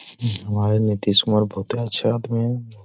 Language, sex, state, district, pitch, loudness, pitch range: Hindi, male, Bihar, Gaya, 105 Hz, -21 LUFS, 105-115 Hz